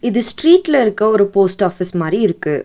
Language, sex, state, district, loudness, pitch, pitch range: Tamil, female, Tamil Nadu, Nilgiris, -13 LUFS, 205 Hz, 185-235 Hz